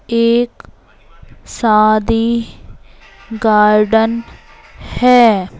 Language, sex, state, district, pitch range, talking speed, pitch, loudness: Hindi, male, Madhya Pradesh, Bhopal, 215-235 Hz, 45 wpm, 225 Hz, -13 LUFS